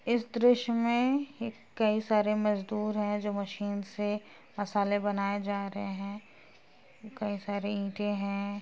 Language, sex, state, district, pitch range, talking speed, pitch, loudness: Hindi, female, Uttar Pradesh, Jalaun, 200-220 Hz, 130 wpm, 205 Hz, -31 LUFS